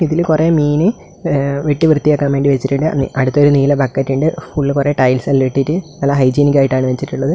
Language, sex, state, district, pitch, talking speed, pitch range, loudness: Malayalam, male, Kerala, Kasaragod, 140 Hz, 140 wpm, 135-155 Hz, -14 LUFS